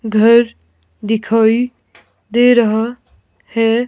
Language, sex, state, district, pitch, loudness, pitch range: Hindi, female, Himachal Pradesh, Shimla, 225 Hz, -14 LUFS, 220-235 Hz